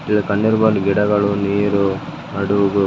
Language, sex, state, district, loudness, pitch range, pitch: Kannada, male, Karnataka, Raichur, -17 LUFS, 100-105 Hz, 100 Hz